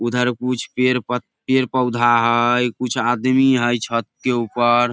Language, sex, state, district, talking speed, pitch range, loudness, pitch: Maithili, male, Bihar, Samastipur, 145 wpm, 120-125 Hz, -18 LUFS, 125 Hz